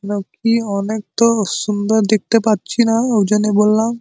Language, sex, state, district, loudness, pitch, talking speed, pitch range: Bengali, male, West Bengal, Malda, -16 LUFS, 215 Hz, 150 wpm, 210-230 Hz